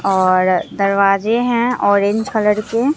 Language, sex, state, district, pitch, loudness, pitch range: Hindi, female, Bihar, Katihar, 205 Hz, -15 LUFS, 195-230 Hz